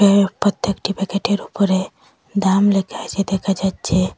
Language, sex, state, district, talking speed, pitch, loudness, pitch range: Bengali, female, Assam, Hailakandi, 130 wpm, 195 Hz, -19 LUFS, 195-200 Hz